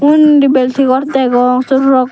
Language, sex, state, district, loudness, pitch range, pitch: Chakma, female, Tripura, Dhalai, -10 LUFS, 255-275 Hz, 265 Hz